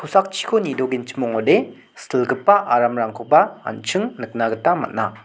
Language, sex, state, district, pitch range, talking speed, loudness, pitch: Garo, male, Meghalaya, South Garo Hills, 120-195 Hz, 90 wpm, -19 LUFS, 130 Hz